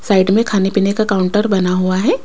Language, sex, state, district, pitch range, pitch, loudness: Hindi, female, Rajasthan, Jaipur, 185-210 Hz, 195 Hz, -15 LUFS